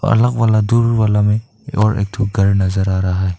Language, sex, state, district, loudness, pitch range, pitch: Hindi, male, Arunachal Pradesh, Papum Pare, -15 LUFS, 100-115 Hz, 105 Hz